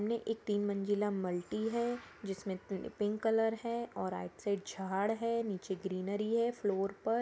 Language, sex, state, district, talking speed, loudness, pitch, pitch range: Hindi, female, Jharkhand, Jamtara, 175 wpm, -36 LUFS, 205 Hz, 195-225 Hz